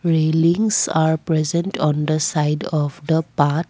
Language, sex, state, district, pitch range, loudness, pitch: English, female, Assam, Kamrup Metropolitan, 150-170 Hz, -19 LUFS, 160 Hz